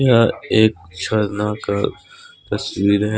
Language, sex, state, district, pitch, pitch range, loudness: Hindi, male, Jharkhand, Deoghar, 105 Hz, 100-115 Hz, -19 LUFS